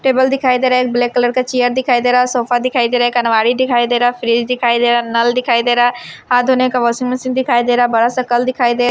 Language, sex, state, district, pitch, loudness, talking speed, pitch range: Hindi, female, Himachal Pradesh, Shimla, 245 Hz, -14 LUFS, 330 wpm, 240-255 Hz